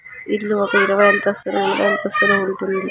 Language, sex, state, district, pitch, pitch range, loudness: Telugu, female, Andhra Pradesh, Anantapur, 200 Hz, 195-205 Hz, -17 LUFS